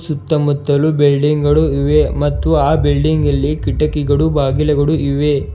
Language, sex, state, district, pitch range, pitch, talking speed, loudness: Kannada, male, Karnataka, Bidar, 145-150 Hz, 145 Hz, 120 wpm, -14 LUFS